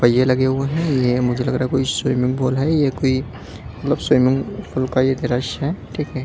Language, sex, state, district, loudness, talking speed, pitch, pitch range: Hindi, male, Delhi, New Delhi, -19 LUFS, 230 wpm, 130 Hz, 125-135 Hz